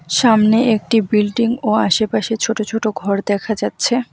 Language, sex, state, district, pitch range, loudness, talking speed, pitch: Bengali, female, West Bengal, Alipurduar, 205-225 Hz, -16 LUFS, 145 wpm, 220 Hz